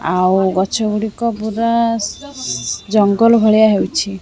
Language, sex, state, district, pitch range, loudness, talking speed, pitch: Odia, female, Odisha, Khordha, 190-230 Hz, -15 LUFS, 115 wpm, 215 Hz